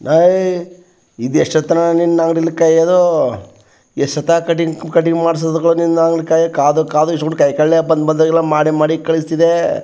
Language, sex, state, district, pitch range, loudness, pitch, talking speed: Kannada, male, Karnataka, Chamarajanagar, 155-170 Hz, -14 LUFS, 165 Hz, 120 wpm